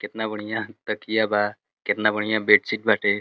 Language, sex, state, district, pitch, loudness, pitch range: Bhojpuri, male, Uttar Pradesh, Deoria, 105 Hz, -23 LUFS, 105-110 Hz